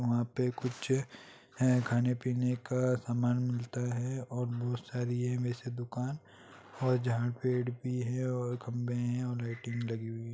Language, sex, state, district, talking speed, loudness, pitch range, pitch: Hindi, male, Bihar, Gopalganj, 170 wpm, -34 LUFS, 120-125 Hz, 125 Hz